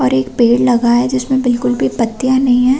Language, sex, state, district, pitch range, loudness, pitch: Hindi, female, Chhattisgarh, Rajnandgaon, 235-260 Hz, -13 LUFS, 245 Hz